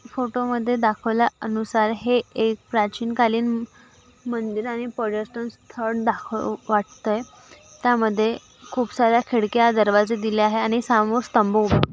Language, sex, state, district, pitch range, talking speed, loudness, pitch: Marathi, female, Maharashtra, Aurangabad, 220-240 Hz, 120 wpm, -22 LUFS, 230 Hz